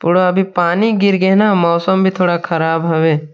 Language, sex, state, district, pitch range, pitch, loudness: Chhattisgarhi, male, Chhattisgarh, Sarguja, 170-190 Hz, 180 Hz, -14 LUFS